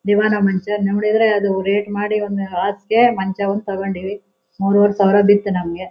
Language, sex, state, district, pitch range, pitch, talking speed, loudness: Kannada, female, Karnataka, Shimoga, 195-205 Hz, 200 Hz, 150 wpm, -17 LUFS